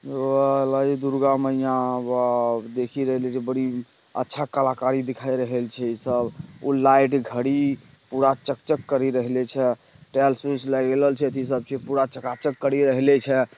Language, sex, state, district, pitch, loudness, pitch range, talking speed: Angika, male, Bihar, Purnia, 135 Hz, -23 LUFS, 125-140 Hz, 170 wpm